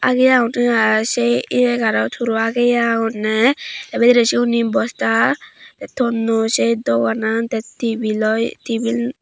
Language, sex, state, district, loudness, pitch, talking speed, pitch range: Chakma, female, Tripura, Dhalai, -17 LUFS, 230 Hz, 145 wpm, 225-240 Hz